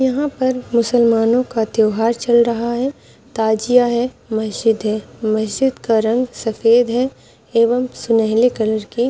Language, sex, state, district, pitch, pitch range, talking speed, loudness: Hindi, female, Maharashtra, Nagpur, 235 Hz, 225-250 Hz, 140 wpm, -17 LUFS